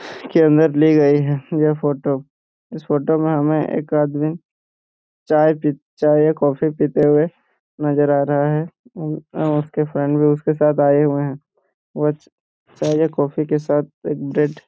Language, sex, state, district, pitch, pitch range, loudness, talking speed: Hindi, male, Jharkhand, Jamtara, 150 Hz, 145-155 Hz, -18 LUFS, 170 wpm